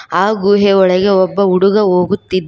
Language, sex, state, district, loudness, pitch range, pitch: Kannada, female, Karnataka, Koppal, -12 LUFS, 185-205 Hz, 195 Hz